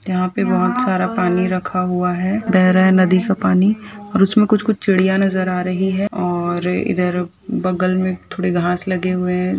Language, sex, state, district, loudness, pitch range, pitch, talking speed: Hindi, female, Rajasthan, Churu, -17 LUFS, 180-195 Hz, 185 Hz, 195 wpm